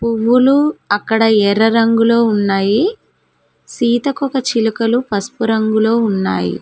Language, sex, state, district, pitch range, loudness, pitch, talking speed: Telugu, female, Telangana, Mahabubabad, 210-240 Hz, -14 LUFS, 225 Hz, 90 wpm